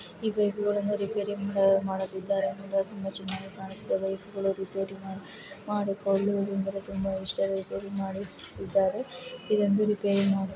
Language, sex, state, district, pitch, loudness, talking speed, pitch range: Kannada, female, Karnataka, Raichur, 195 Hz, -29 LUFS, 110 wpm, 195-205 Hz